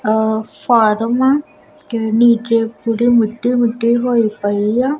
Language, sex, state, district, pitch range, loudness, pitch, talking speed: Punjabi, female, Punjab, Kapurthala, 220-240 Hz, -15 LUFS, 230 Hz, 95 wpm